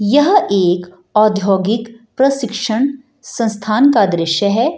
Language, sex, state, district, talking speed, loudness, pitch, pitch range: Hindi, female, Bihar, Jahanabad, 115 wpm, -15 LUFS, 225 Hz, 200-270 Hz